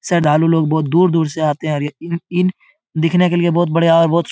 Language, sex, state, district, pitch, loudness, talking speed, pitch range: Hindi, male, Bihar, Supaul, 165 Hz, -15 LUFS, 250 wpm, 155-175 Hz